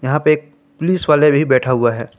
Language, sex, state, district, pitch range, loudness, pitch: Hindi, male, Jharkhand, Palamu, 130-155 Hz, -15 LUFS, 145 Hz